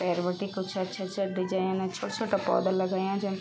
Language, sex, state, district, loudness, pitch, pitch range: Garhwali, female, Uttarakhand, Tehri Garhwal, -30 LUFS, 190 Hz, 185-195 Hz